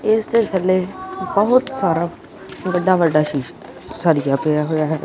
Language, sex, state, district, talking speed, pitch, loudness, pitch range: Punjabi, male, Punjab, Kapurthala, 130 wpm, 175 Hz, -18 LUFS, 155-205 Hz